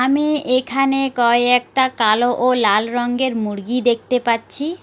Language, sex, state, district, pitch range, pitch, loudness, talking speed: Bengali, female, West Bengal, Alipurduar, 235-260 Hz, 250 Hz, -17 LUFS, 125 wpm